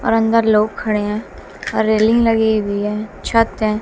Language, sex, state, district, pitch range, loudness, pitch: Hindi, female, Bihar, West Champaran, 210-225 Hz, -17 LUFS, 220 Hz